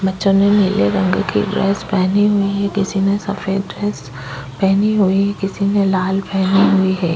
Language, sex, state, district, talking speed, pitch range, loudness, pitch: Hindi, female, Bihar, Vaishali, 195 wpm, 185-200 Hz, -16 LUFS, 195 Hz